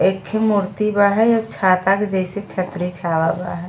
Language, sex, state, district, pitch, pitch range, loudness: Bhojpuri, female, Uttar Pradesh, Gorakhpur, 190 Hz, 180-205 Hz, -18 LUFS